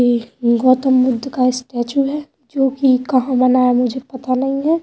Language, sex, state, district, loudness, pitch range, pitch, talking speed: Hindi, female, Uttar Pradesh, Jalaun, -16 LUFS, 250-270 Hz, 255 Hz, 175 wpm